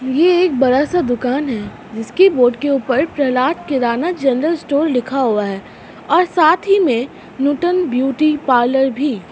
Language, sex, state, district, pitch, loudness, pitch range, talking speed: Hindi, female, Bihar, Katihar, 275 Hz, -16 LUFS, 250-330 Hz, 165 wpm